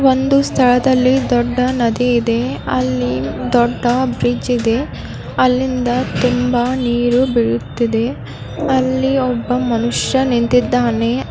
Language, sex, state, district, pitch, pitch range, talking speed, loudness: Kannada, female, Karnataka, Belgaum, 245 Hz, 235-255 Hz, 85 wpm, -16 LUFS